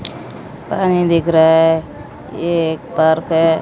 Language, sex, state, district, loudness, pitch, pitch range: Hindi, female, Odisha, Malkangiri, -15 LUFS, 165 Hz, 160-170 Hz